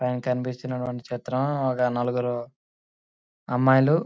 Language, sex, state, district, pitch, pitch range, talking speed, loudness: Telugu, male, Andhra Pradesh, Srikakulam, 125 Hz, 125-130 Hz, 90 wpm, -25 LUFS